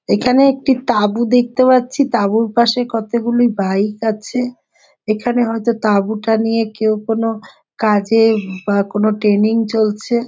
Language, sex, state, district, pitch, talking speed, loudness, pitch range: Bengali, female, West Bengal, Jhargram, 225 Hz, 120 wpm, -15 LUFS, 215-240 Hz